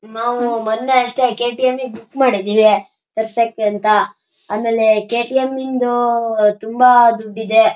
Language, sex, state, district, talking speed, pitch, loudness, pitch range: Kannada, male, Karnataka, Shimoga, 115 wpm, 230 Hz, -16 LUFS, 220-245 Hz